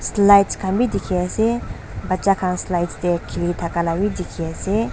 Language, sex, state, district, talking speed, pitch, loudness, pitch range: Nagamese, female, Nagaland, Dimapur, 185 wpm, 185 Hz, -20 LUFS, 175-200 Hz